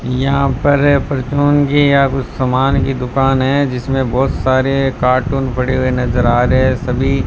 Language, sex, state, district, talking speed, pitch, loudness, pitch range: Hindi, male, Rajasthan, Bikaner, 175 wpm, 135 Hz, -14 LUFS, 130-140 Hz